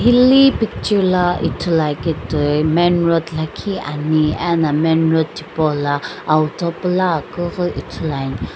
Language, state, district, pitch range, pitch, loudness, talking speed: Sumi, Nagaland, Dimapur, 150-180 Hz, 160 Hz, -17 LUFS, 135 wpm